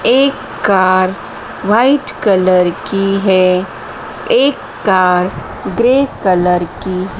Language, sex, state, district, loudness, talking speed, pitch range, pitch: Hindi, female, Madhya Pradesh, Dhar, -13 LUFS, 100 wpm, 185-235 Hz, 190 Hz